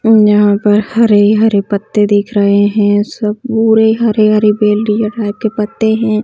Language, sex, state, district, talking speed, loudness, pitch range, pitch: Hindi, female, Chhattisgarh, Bastar, 155 wpm, -11 LUFS, 205-220 Hz, 215 Hz